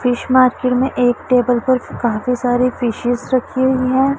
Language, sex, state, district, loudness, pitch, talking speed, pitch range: Hindi, female, Punjab, Pathankot, -16 LUFS, 250 Hz, 170 wpm, 245-260 Hz